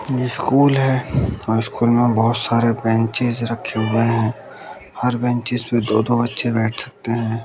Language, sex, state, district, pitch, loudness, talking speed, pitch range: Hindi, male, Bihar, West Champaran, 115 Hz, -18 LUFS, 170 wpm, 115-125 Hz